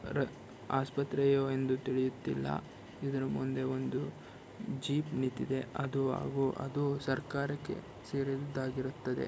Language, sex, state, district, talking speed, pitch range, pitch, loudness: Kannada, male, Karnataka, Shimoga, 85 wpm, 130-140 Hz, 135 Hz, -35 LUFS